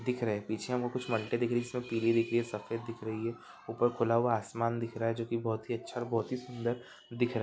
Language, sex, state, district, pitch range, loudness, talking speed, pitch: Hindi, male, Maharashtra, Pune, 115-120 Hz, -33 LUFS, 275 wpm, 115 Hz